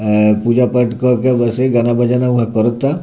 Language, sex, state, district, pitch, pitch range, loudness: Bhojpuri, male, Bihar, Muzaffarpur, 120 Hz, 115-125 Hz, -14 LUFS